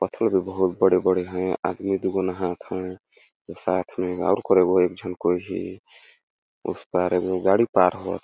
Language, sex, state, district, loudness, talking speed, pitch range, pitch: Awadhi, male, Chhattisgarh, Balrampur, -23 LUFS, 190 wpm, 90-95 Hz, 95 Hz